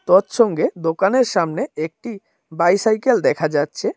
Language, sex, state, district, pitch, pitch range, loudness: Bengali, male, Tripura, Dhalai, 195 Hz, 165-230 Hz, -18 LUFS